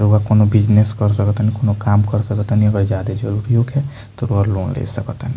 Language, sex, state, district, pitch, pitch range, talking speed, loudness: Bhojpuri, male, Bihar, Muzaffarpur, 105 Hz, 105-115 Hz, 245 wpm, -17 LUFS